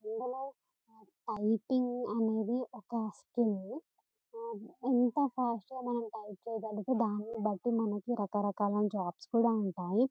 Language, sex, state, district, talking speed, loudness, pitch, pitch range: Telugu, male, Telangana, Karimnagar, 105 wpm, -34 LUFS, 230 Hz, 210-255 Hz